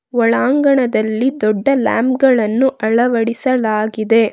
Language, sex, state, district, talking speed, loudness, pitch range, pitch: Kannada, female, Karnataka, Bangalore, 70 wpm, -15 LUFS, 220-260 Hz, 235 Hz